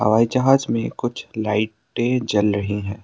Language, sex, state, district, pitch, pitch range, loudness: Hindi, male, Assam, Sonitpur, 110 Hz, 105-120 Hz, -21 LUFS